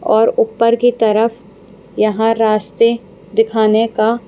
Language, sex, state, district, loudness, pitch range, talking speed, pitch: Hindi, female, Punjab, Pathankot, -14 LUFS, 215-230 Hz, 110 wpm, 225 Hz